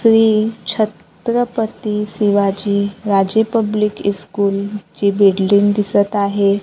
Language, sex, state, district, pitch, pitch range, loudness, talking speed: Marathi, female, Maharashtra, Gondia, 205 Hz, 200-215 Hz, -16 LUFS, 90 wpm